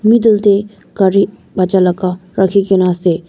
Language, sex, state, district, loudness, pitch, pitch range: Nagamese, female, Nagaland, Dimapur, -13 LUFS, 190 Hz, 185-200 Hz